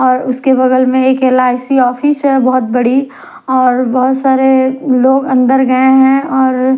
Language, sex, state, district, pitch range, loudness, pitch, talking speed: Hindi, female, Odisha, Nuapada, 255-265 Hz, -11 LUFS, 260 Hz, 160 wpm